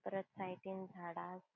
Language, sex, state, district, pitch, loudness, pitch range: Konkani, female, Goa, North and South Goa, 185 Hz, -47 LUFS, 180-190 Hz